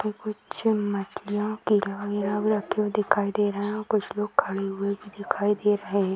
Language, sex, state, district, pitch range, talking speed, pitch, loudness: Hindi, female, Bihar, Jamui, 200-210 Hz, 195 wpm, 205 Hz, -26 LUFS